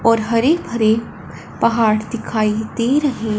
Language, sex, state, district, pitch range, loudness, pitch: Hindi, female, Punjab, Fazilka, 220-235 Hz, -17 LUFS, 230 Hz